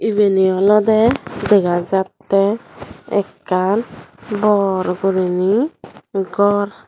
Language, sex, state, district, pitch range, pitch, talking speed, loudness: Chakma, female, Tripura, Dhalai, 190-210 Hz, 200 Hz, 60 wpm, -17 LUFS